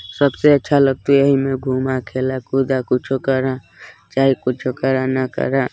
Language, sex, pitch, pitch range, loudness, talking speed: Bajjika, male, 130 Hz, 130-135 Hz, -18 LUFS, 155 wpm